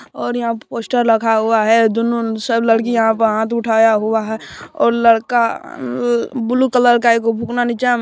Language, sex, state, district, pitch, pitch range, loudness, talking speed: Maithili, male, Bihar, Supaul, 230 Hz, 225-235 Hz, -15 LUFS, 195 wpm